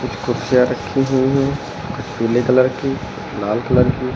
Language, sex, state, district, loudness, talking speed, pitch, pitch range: Hindi, male, Uttar Pradesh, Lucknow, -18 LUFS, 160 wpm, 125 Hz, 115-135 Hz